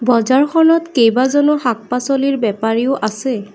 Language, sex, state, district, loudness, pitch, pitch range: Assamese, female, Assam, Kamrup Metropolitan, -15 LUFS, 255 Hz, 230-275 Hz